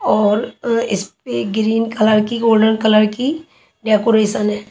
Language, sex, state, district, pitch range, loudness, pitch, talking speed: Hindi, female, Haryana, Charkhi Dadri, 210-230 Hz, -16 LUFS, 220 Hz, 155 wpm